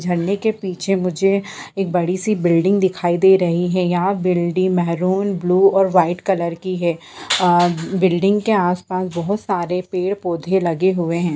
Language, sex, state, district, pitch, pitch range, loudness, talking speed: Hindi, female, Bihar, Purnia, 185 Hz, 175-195 Hz, -18 LUFS, 165 wpm